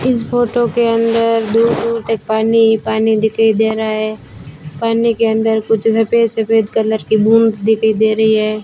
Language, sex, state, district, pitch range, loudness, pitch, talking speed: Hindi, female, Rajasthan, Bikaner, 220-230 Hz, -14 LUFS, 225 Hz, 175 wpm